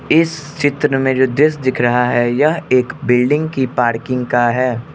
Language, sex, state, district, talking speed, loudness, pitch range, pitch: Hindi, male, Arunachal Pradesh, Lower Dibang Valley, 180 wpm, -15 LUFS, 125-150 Hz, 130 Hz